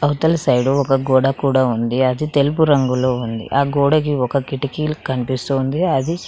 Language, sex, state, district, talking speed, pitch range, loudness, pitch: Telugu, female, Telangana, Mahabubabad, 160 wpm, 130-145 Hz, -17 LUFS, 135 Hz